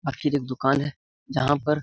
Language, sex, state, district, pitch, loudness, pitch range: Hindi, male, Bihar, Lakhisarai, 140 Hz, -25 LUFS, 135-145 Hz